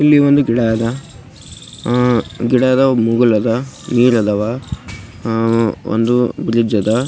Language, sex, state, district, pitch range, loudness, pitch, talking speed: Kannada, male, Karnataka, Gulbarga, 115-125 Hz, -15 LUFS, 120 Hz, 110 wpm